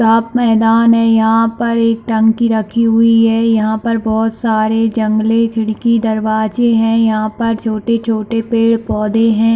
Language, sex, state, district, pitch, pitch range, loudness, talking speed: Hindi, female, Chhattisgarh, Bilaspur, 225 Hz, 220-230 Hz, -13 LUFS, 145 wpm